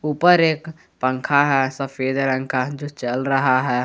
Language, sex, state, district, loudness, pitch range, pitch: Hindi, male, Jharkhand, Garhwa, -20 LUFS, 130-145 Hz, 135 Hz